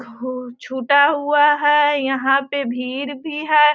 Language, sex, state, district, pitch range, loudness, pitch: Hindi, female, Bihar, Sitamarhi, 260-295 Hz, -18 LUFS, 285 Hz